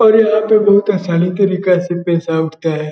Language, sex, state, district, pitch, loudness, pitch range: Hindi, male, Bihar, Jahanabad, 180 Hz, -14 LUFS, 170-205 Hz